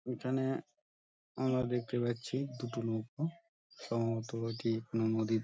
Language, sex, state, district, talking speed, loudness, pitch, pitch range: Bengali, male, West Bengal, Dakshin Dinajpur, 110 wpm, -36 LUFS, 115 Hz, 115-130 Hz